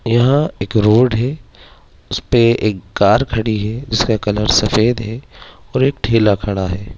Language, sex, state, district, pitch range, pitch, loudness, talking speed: Hindi, male, Bihar, Darbhanga, 100-120 Hz, 110 Hz, -15 LUFS, 155 wpm